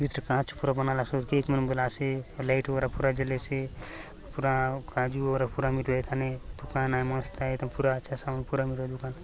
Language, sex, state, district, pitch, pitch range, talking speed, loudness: Halbi, male, Chhattisgarh, Bastar, 130 Hz, 130-135 Hz, 215 wpm, -30 LUFS